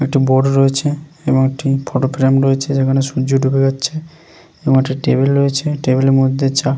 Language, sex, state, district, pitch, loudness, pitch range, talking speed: Bengali, male, West Bengal, Paschim Medinipur, 135 Hz, -15 LUFS, 135-140 Hz, 170 wpm